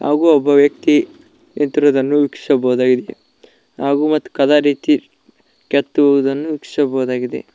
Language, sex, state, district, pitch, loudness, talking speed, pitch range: Kannada, male, Karnataka, Koppal, 145 Hz, -15 LUFS, 85 wpm, 140-155 Hz